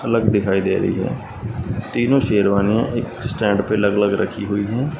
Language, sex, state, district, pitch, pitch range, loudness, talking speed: Hindi, male, Punjab, Fazilka, 110 Hz, 100-115 Hz, -19 LUFS, 180 wpm